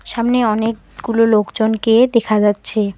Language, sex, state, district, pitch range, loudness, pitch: Bengali, female, West Bengal, Alipurduar, 215-230 Hz, -15 LUFS, 220 Hz